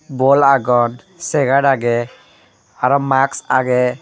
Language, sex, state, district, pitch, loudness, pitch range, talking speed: Chakma, female, Tripura, Dhalai, 130 Hz, -15 LUFS, 125-140 Hz, 105 wpm